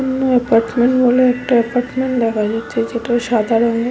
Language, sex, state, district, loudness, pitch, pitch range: Bengali, female, West Bengal, Malda, -16 LUFS, 240 Hz, 230-250 Hz